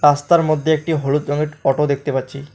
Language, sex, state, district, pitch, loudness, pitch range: Bengali, male, West Bengal, Alipurduar, 145 Hz, -18 LUFS, 140-155 Hz